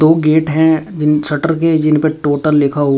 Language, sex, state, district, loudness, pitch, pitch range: Hindi, male, Uttar Pradesh, Shamli, -13 LUFS, 155 Hz, 150-160 Hz